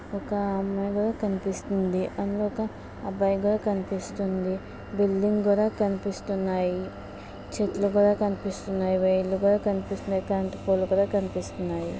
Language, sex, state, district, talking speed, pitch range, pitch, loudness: Telugu, female, Andhra Pradesh, Visakhapatnam, 90 wpm, 190-205 Hz, 195 Hz, -27 LUFS